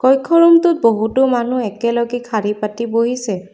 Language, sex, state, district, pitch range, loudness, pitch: Assamese, female, Assam, Kamrup Metropolitan, 220-260 Hz, -15 LUFS, 235 Hz